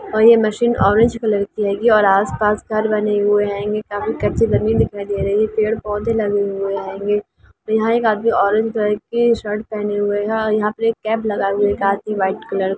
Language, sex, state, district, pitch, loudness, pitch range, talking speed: Hindi, female, Bihar, Gopalganj, 210 Hz, -18 LUFS, 205-220 Hz, 210 wpm